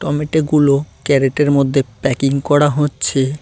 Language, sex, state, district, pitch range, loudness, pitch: Bengali, male, West Bengal, Cooch Behar, 135-150 Hz, -15 LUFS, 140 Hz